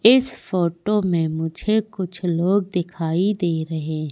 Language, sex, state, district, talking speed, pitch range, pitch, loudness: Hindi, female, Madhya Pradesh, Katni, 130 wpm, 160-205 Hz, 180 Hz, -22 LUFS